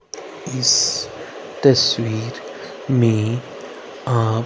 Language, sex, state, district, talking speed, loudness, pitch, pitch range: Hindi, male, Haryana, Rohtak, 55 wpm, -18 LUFS, 115 Hz, 110-125 Hz